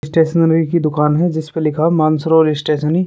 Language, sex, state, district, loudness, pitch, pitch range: Hindi, male, Rajasthan, Churu, -15 LUFS, 160 Hz, 155-165 Hz